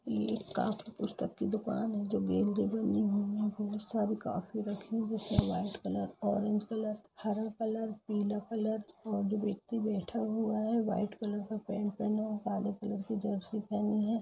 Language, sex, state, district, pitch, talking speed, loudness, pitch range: Hindi, female, Bihar, Gopalganj, 215 Hz, 175 wpm, -35 LUFS, 205-220 Hz